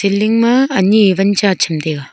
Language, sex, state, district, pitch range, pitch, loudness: Wancho, female, Arunachal Pradesh, Longding, 190-215 Hz, 200 Hz, -13 LUFS